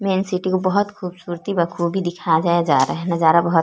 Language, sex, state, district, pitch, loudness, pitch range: Hindi, female, Chhattisgarh, Korba, 175 Hz, -19 LUFS, 170-185 Hz